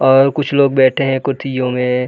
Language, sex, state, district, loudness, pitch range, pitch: Hindi, male, Uttar Pradesh, Budaun, -14 LUFS, 130-135 Hz, 135 Hz